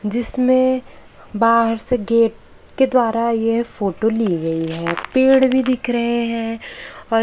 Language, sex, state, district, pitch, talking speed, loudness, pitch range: Hindi, male, Maharashtra, Gondia, 230 Hz, 140 wpm, -18 LUFS, 225-255 Hz